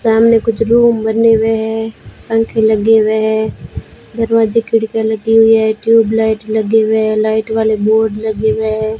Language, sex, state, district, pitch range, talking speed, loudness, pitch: Hindi, female, Rajasthan, Bikaner, 220-225 Hz, 160 wpm, -13 LUFS, 220 Hz